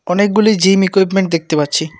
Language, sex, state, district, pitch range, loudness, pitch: Bengali, male, West Bengal, Alipurduar, 165-195 Hz, -13 LUFS, 190 Hz